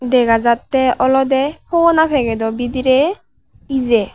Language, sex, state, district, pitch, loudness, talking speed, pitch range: Chakma, female, Tripura, Unakoti, 260 Hz, -15 LUFS, 115 wpm, 235-275 Hz